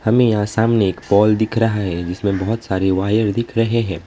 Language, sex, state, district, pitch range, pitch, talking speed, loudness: Hindi, male, West Bengal, Alipurduar, 95-115 Hz, 105 Hz, 220 wpm, -17 LUFS